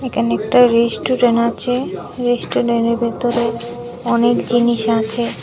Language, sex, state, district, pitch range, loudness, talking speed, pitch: Bengali, female, Tripura, West Tripura, 230-240 Hz, -17 LUFS, 100 wpm, 235 Hz